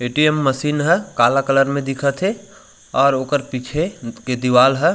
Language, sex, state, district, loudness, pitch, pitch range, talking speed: Chhattisgarhi, male, Chhattisgarh, Raigarh, -18 LUFS, 140 Hz, 130-150 Hz, 195 wpm